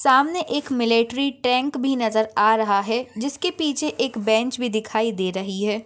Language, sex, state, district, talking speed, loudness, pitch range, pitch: Hindi, female, Maharashtra, Nagpur, 175 wpm, -22 LUFS, 220-270 Hz, 235 Hz